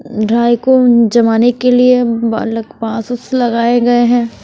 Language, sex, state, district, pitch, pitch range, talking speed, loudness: Hindi, female, Chhattisgarh, Raipur, 235 Hz, 230-245 Hz, 135 wpm, -12 LUFS